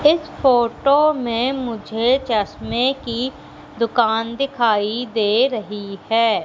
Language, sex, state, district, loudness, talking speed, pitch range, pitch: Hindi, female, Madhya Pradesh, Katni, -19 LUFS, 100 wpm, 225-260 Hz, 235 Hz